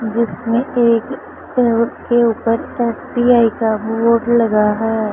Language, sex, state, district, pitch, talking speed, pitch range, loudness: Hindi, female, Punjab, Pathankot, 230 Hz, 105 wpm, 225-240 Hz, -16 LUFS